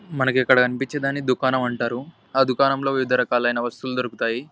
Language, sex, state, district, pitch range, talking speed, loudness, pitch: Telugu, male, Andhra Pradesh, Anantapur, 125-135 Hz, 170 wpm, -21 LUFS, 130 Hz